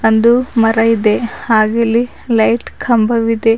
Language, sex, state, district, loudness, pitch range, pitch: Kannada, female, Karnataka, Bidar, -13 LUFS, 225-235 Hz, 230 Hz